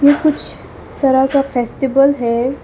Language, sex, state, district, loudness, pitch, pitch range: Hindi, female, Arunachal Pradesh, Papum Pare, -15 LUFS, 270 Hz, 260-280 Hz